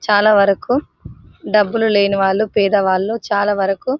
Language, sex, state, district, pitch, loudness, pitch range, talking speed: Telugu, female, Telangana, Nalgonda, 205 Hz, -16 LUFS, 200-215 Hz, 105 wpm